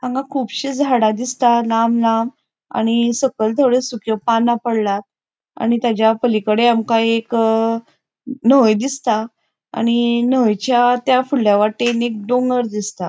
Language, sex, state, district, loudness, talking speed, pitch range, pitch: Konkani, female, Goa, North and South Goa, -17 LUFS, 130 wpm, 225-250 Hz, 235 Hz